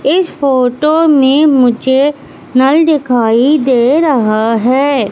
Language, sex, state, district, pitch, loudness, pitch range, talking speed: Hindi, female, Madhya Pradesh, Katni, 270 Hz, -10 LUFS, 245-295 Hz, 105 wpm